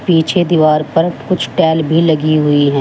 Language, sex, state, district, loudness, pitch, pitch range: Hindi, female, Uttar Pradesh, Shamli, -13 LUFS, 160 Hz, 150-165 Hz